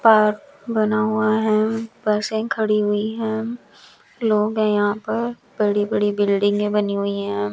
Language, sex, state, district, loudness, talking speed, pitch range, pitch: Hindi, female, Chandigarh, Chandigarh, -21 LUFS, 145 wpm, 205-220 Hz, 215 Hz